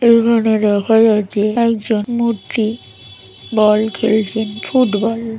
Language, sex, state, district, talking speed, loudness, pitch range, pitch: Bengali, male, West Bengal, Kolkata, 100 wpm, -15 LUFS, 210-230 Hz, 220 Hz